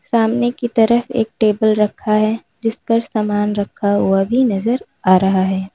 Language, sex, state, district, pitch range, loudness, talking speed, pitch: Hindi, female, Uttar Pradesh, Lalitpur, 205-230 Hz, -17 LUFS, 180 wpm, 215 Hz